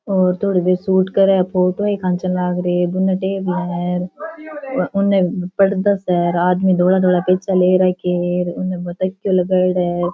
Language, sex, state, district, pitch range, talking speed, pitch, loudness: Rajasthani, female, Rajasthan, Churu, 180-190 Hz, 195 wpm, 185 Hz, -17 LUFS